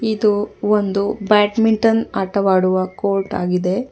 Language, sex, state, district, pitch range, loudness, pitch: Kannada, female, Karnataka, Bangalore, 190-220 Hz, -17 LUFS, 205 Hz